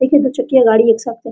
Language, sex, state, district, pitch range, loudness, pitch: Hindi, female, Bihar, Araria, 230-260 Hz, -13 LUFS, 240 Hz